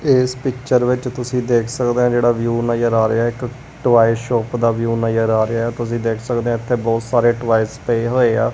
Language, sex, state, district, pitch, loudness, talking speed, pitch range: Punjabi, male, Punjab, Kapurthala, 120 Hz, -17 LUFS, 225 wpm, 115-125 Hz